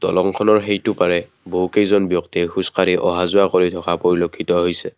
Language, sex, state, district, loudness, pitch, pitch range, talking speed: Assamese, male, Assam, Kamrup Metropolitan, -18 LUFS, 90 Hz, 85-100 Hz, 130 wpm